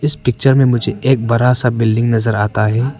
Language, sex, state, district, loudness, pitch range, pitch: Hindi, male, Arunachal Pradesh, Papum Pare, -14 LUFS, 115-130 Hz, 120 Hz